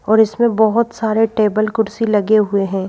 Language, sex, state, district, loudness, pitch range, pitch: Hindi, female, Madhya Pradesh, Bhopal, -15 LUFS, 210-225 Hz, 220 Hz